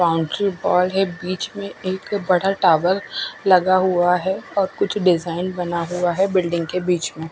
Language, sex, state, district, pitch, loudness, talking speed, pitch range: Hindi, female, Odisha, Khordha, 180 Hz, -20 LUFS, 170 wpm, 175-195 Hz